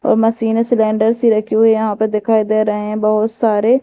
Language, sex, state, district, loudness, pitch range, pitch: Hindi, female, Madhya Pradesh, Dhar, -15 LUFS, 215-225 Hz, 220 Hz